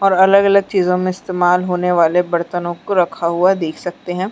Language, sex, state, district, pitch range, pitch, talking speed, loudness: Hindi, female, Chhattisgarh, Sarguja, 175-190 Hz, 180 Hz, 210 wpm, -16 LUFS